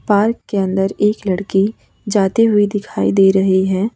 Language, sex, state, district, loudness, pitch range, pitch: Hindi, female, Chhattisgarh, Raipur, -16 LUFS, 195-210 Hz, 200 Hz